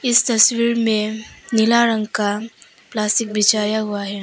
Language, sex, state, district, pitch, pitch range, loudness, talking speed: Hindi, female, Arunachal Pradesh, Papum Pare, 220 Hz, 210-230 Hz, -17 LUFS, 140 wpm